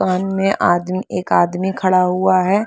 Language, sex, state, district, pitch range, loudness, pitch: Hindi, female, Chhattisgarh, Balrampur, 180-190 Hz, -17 LUFS, 185 Hz